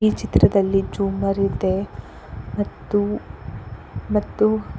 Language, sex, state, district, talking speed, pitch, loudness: Kannada, female, Karnataka, Koppal, 65 wpm, 195 Hz, -21 LUFS